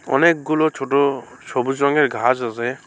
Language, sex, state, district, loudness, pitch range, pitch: Bengali, male, West Bengal, Alipurduar, -19 LUFS, 125-150 Hz, 135 Hz